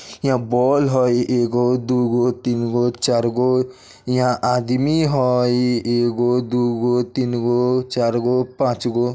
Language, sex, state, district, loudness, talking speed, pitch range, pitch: Bajjika, male, Bihar, Vaishali, -19 LUFS, 140 wpm, 120-125 Hz, 125 Hz